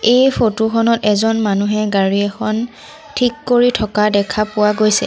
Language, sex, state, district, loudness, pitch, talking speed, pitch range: Assamese, female, Assam, Sonitpur, -15 LUFS, 220 Hz, 155 wpm, 210-245 Hz